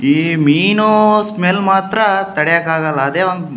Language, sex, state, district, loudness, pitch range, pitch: Kannada, male, Karnataka, Shimoga, -13 LUFS, 155-200 Hz, 180 Hz